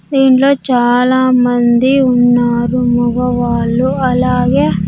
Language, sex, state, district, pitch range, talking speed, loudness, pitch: Telugu, female, Andhra Pradesh, Sri Satya Sai, 240-260 Hz, 60 wpm, -12 LUFS, 245 Hz